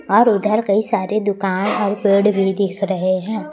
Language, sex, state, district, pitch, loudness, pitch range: Hindi, female, Chhattisgarh, Raipur, 200 Hz, -17 LUFS, 195-215 Hz